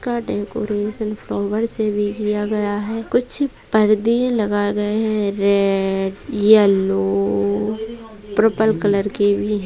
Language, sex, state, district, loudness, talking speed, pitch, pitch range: Hindi, female, Bihar, Gaya, -19 LUFS, 125 wpm, 210 Hz, 200-220 Hz